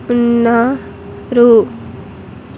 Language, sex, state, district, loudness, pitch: Telugu, female, Andhra Pradesh, Sri Satya Sai, -12 LUFS, 235 Hz